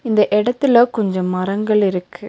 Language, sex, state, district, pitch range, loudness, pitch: Tamil, female, Tamil Nadu, Nilgiris, 190-225 Hz, -17 LUFS, 210 Hz